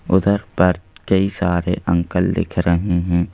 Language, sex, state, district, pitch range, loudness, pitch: Hindi, male, Madhya Pradesh, Bhopal, 85-95 Hz, -19 LUFS, 90 Hz